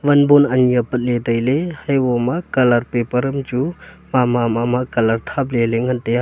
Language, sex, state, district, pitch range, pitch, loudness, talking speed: Wancho, male, Arunachal Pradesh, Longding, 120-135 Hz, 125 Hz, -17 LUFS, 185 wpm